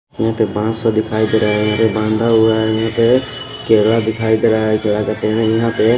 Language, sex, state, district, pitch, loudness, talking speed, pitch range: Hindi, male, Maharashtra, Washim, 110 Hz, -15 LUFS, 210 wpm, 110-115 Hz